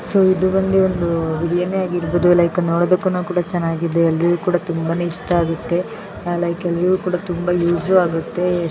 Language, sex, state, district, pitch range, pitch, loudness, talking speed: Kannada, female, Karnataka, Bellary, 170-180 Hz, 175 Hz, -18 LUFS, 125 wpm